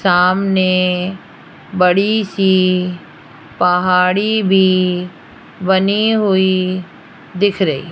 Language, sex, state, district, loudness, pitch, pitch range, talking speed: Hindi, female, Rajasthan, Jaipur, -15 LUFS, 185 Hz, 180-195 Hz, 70 wpm